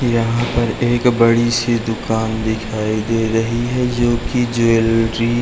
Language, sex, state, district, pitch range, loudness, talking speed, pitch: Hindi, male, Chhattisgarh, Raigarh, 115-120 Hz, -17 LUFS, 155 wpm, 115 Hz